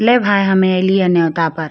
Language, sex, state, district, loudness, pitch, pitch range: Maithili, female, Bihar, Begusarai, -14 LUFS, 185 Hz, 165-195 Hz